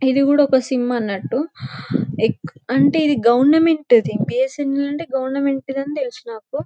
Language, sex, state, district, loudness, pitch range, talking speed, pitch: Telugu, female, Telangana, Karimnagar, -18 LUFS, 260-295 Hz, 160 wpm, 275 Hz